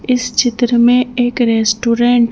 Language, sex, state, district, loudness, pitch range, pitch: Hindi, female, Madhya Pradesh, Bhopal, -13 LUFS, 235-245 Hz, 240 Hz